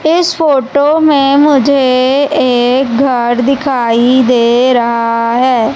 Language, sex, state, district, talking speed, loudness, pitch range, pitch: Hindi, female, Madhya Pradesh, Umaria, 105 wpm, -10 LUFS, 240-285 Hz, 255 Hz